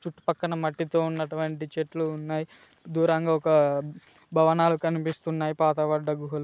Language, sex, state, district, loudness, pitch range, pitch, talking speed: Telugu, male, Telangana, Nalgonda, -26 LUFS, 155-165 Hz, 160 Hz, 100 wpm